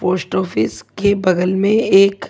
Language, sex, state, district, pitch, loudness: Hindi, female, Delhi, New Delhi, 185 Hz, -16 LUFS